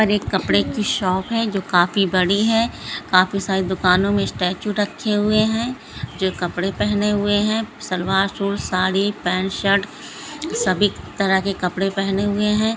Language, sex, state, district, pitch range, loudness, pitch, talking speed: Hindi, female, Bihar, Samastipur, 185-210 Hz, -20 LUFS, 200 Hz, 170 wpm